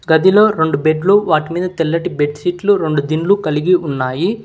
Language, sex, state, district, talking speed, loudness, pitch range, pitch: Telugu, male, Telangana, Hyderabad, 160 wpm, -15 LUFS, 155-190 Hz, 165 Hz